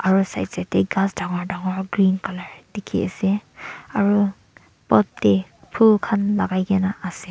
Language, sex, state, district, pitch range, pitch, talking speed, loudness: Nagamese, male, Nagaland, Dimapur, 180-200 Hz, 190 Hz, 140 wpm, -21 LUFS